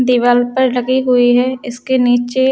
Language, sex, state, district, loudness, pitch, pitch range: Hindi, female, Haryana, Charkhi Dadri, -13 LUFS, 250 Hz, 245-260 Hz